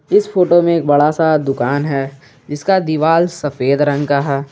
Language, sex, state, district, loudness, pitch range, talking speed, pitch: Hindi, male, Jharkhand, Garhwa, -15 LUFS, 140-165 Hz, 185 wpm, 145 Hz